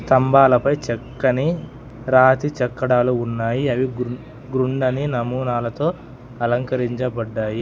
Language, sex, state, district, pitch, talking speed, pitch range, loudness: Telugu, male, Telangana, Hyderabad, 125 Hz, 80 wpm, 120-130 Hz, -20 LUFS